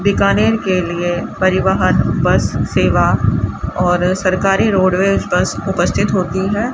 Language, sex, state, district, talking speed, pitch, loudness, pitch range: Hindi, female, Rajasthan, Bikaner, 115 wpm, 185 Hz, -15 LUFS, 175-195 Hz